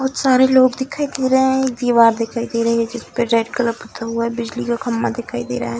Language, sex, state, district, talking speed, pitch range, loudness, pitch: Hindi, female, Bihar, Darbhanga, 270 wpm, 230-260 Hz, -18 LUFS, 235 Hz